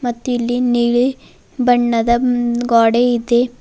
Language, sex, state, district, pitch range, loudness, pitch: Kannada, female, Karnataka, Bidar, 235-245 Hz, -15 LUFS, 240 Hz